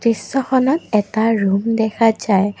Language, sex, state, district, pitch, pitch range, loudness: Assamese, female, Assam, Kamrup Metropolitan, 225 Hz, 205-235 Hz, -17 LUFS